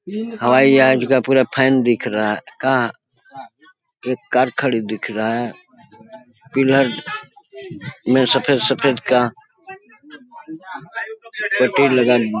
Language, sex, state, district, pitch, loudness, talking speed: Hindi, male, Chhattisgarh, Balrampur, 135 Hz, -17 LUFS, 95 wpm